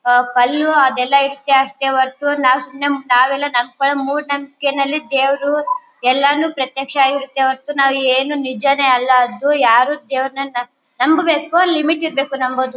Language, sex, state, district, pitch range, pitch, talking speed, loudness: Kannada, female, Karnataka, Bellary, 260-290 Hz, 275 Hz, 140 wpm, -15 LUFS